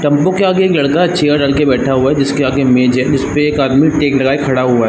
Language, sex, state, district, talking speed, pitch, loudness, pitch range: Hindi, male, Jharkhand, Sahebganj, 295 wpm, 140 Hz, -12 LUFS, 135-150 Hz